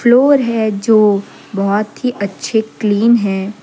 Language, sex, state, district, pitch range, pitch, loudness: Hindi, female, Jharkhand, Deoghar, 200-235 Hz, 215 Hz, -14 LUFS